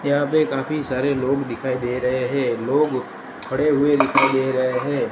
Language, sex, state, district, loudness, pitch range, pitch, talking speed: Hindi, male, Gujarat, Gandhinagar, -20 LUFS, 130-145 Hz, 135 Hz, 190 wpm